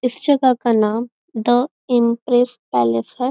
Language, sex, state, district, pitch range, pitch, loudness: Hindi, female, Maharashtra, Nagpur, 230-250 Hz, 245 Hz, -18 LUFS